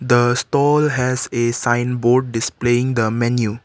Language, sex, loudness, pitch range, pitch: English, male, -18 LUFS, 120-125 Hz, 120 Hz